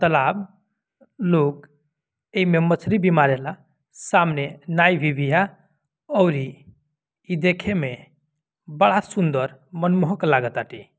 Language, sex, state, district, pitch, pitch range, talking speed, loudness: Bhojpuri, male, Bihar, Gopalganj, 160 Hz, 145-185 Hz, 105 wpm, -21 LUFS